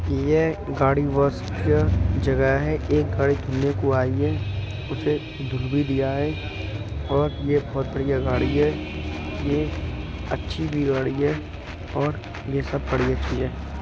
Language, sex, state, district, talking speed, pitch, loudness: Hindi, male, Uttar Pradesh, Budaun, 150 wpm, 100 Hz, -24 LUFS